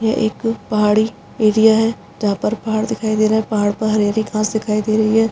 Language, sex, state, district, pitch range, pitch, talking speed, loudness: Hindi, female, Uttarakhand, Uttarkashi, 215-220 Hz, 215 Hz, 225 wpm, -17 LUFS